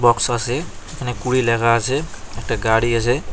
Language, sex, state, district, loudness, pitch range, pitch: Bengali, male, West Bengal, Cooch Behar, -19 LUFS, 115-125 Hz, 120 Hz